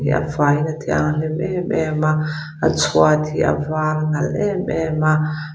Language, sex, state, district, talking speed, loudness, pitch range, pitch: Mizo, female, Mizoram, Aizawl, 185 wpm, -19 LUFS, 150-155 Hz, 155 Hz